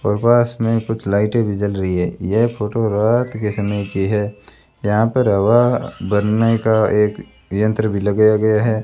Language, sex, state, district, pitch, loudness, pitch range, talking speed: Hindi, male, Rajasthan, Bikaner, 110 Hz, -17 LUFS, 105-115 Hz, 185 wpm